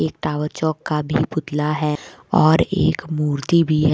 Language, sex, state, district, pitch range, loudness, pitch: Hindi, female, Jharkhand, Deoghar, 150-155 Hz, -20 LUFS, 155 Hz